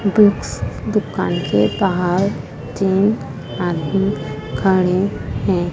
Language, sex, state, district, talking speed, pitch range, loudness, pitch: Hindi, female, Madhya Pradesh, Dhar, 85 wpm, 175-200 Hz, -18 LUFS, 185 Hz